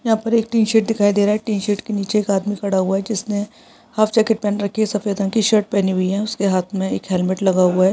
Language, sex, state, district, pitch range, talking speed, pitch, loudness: Hindi, male, Uttarakhand, Tehri Garhwal, 195-220 Hz, 310 wpm, 205 Hz, -19 LUFS